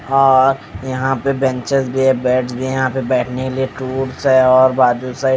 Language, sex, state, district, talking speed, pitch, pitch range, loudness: Hindi, male, Odisha, Malkangiri, 225 wpm, 130 Hz, 130-135 Hz, -16 LUFS